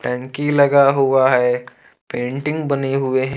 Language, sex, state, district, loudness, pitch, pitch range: Hindi, male, Jharkhand, Ranchi, -17 LUFS, 135 Hz, 130-140 Hz